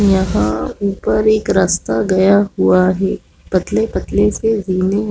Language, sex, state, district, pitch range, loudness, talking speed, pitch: Hindi, female, Chhattisgarh, Raigarh, 190-210 Hz, -15 LUFS, 140 wpm, 200 Hz